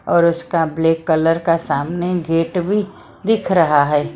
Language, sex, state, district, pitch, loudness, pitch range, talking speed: Hindi, female, Maharashtra, Mumbai Suburban, 165 Hz, -17 LUFS, 160-175 Hz, 160 wpm